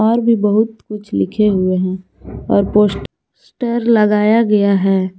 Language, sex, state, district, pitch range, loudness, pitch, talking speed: Hindi, female, Jharkhand, Garhwa, 190-220 Hz, -15 LUFS, 210 Hz, 140 wpm